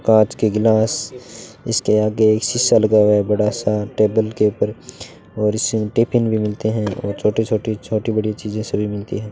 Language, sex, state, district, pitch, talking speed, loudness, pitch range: Hindi, male, Rajasthan, Bikaner, 110 Hz, 195 wpm, -18 LUFS, 105-110 Hz